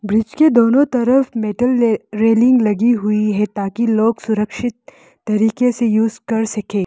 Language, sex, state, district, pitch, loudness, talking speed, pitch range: Hindi, female, Arunachal Pradesh, Lower Dibang Valley, 225 Hz, -16 LUFS, 140 wpm, 210-240 Hz